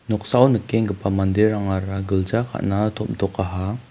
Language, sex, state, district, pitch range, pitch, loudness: Garo, male, Meghalaya, West Garo Hills, 95-110 Hz, 105 Hz, -21 LUFS